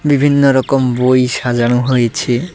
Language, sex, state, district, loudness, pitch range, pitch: Bengali, male, West Bengal, Cooch Behar, -13 LUFS, 125-140 Hz, 130 Hz